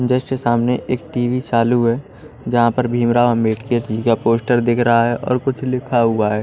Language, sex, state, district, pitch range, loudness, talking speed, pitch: Hindi, male, Odisha, Malkangiri, 115-125 Hz, -17 LUFS, 195 wpm, 120 Hz